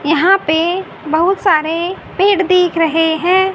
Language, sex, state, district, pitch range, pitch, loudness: Hindi, female, Haryana, Rohtak, 320-380 Hz, 350 Hz, -14 LUFS